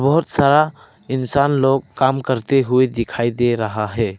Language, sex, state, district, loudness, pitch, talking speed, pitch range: Hindi, male, Arunachal Pradesh, Lower Dibang Valley, -18 LUFS, 130 Hz, 155 wpm, 115-140 Hz